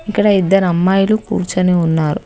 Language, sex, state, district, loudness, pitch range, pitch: Telugu, female, Telangana, Hyderabad, -14 LUFS, 180-205 Hz, 190 Hz